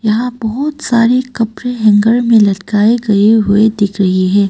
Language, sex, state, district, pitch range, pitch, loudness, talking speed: Hindi, female, Arunachal Pradesh, Papum Pare, 205-240 Hz, 220 Hz, -12 LUFS, 160 wpm